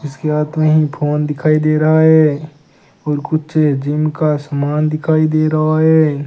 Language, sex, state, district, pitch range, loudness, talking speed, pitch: Hindi, male, Rajasthan, Bikaner, 150-155 Hz, -14 LUFS, 170 wpm, 155 Hz